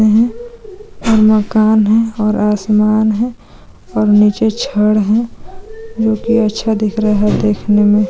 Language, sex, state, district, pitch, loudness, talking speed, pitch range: Hindi, female, Chhattisgarh, Bastar, 215 Hz, -13 LUFS, 135 wpm, 210-230 Hz